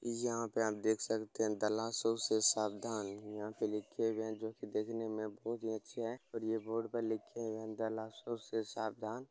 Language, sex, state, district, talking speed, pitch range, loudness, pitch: Hindi, male, Bihar, Gopalganj, 195 wpm, 110-115 Hz, -38 LUFS, 110 Hz